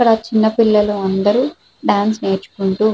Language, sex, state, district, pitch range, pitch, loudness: Telugu, female, Andhra Pradesh, Srikakulam, 200-220 Hz, 210 Hz, -16 LUFS